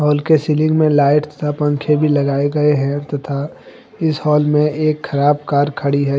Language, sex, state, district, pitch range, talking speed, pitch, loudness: Hindi, male, Jharkhand, Deoghar, 145-150 Hz, 195 wpm, 150 Hz, -16 LUFS